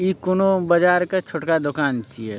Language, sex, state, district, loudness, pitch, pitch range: Maithili, male, Bihar, Supaul, -20 LUFS, 170 Hz, 140-185 Hz